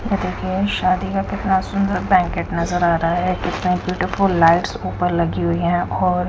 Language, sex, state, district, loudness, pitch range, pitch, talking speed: Hindi, female, Punjab, Kapurthala, -19 LUFS, 175-190 Hz, 180 Hz, 180 wpm